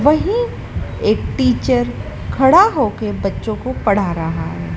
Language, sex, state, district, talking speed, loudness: Hindi, female, Madhya Pradesh, Dhar, 140 wpm, -17 LUFS